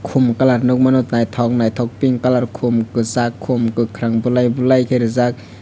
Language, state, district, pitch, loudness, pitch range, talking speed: Kokborok, Tripura, West Tripura, 120 Hz, -16 LUFS, 115-125 Hz, 140 wpm